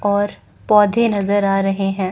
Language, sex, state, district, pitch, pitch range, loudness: Hindi, female, Chandigarh, Chandigarh, 200 Hz, 195-205 Hz, -17 LUFS